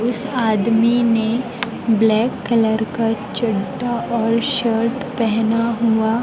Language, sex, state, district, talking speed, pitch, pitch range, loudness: Hindi, female, Chhattisgarh, Raipur, 105 wpm, 230 Hz, 225-240 Hz, -18 LUFS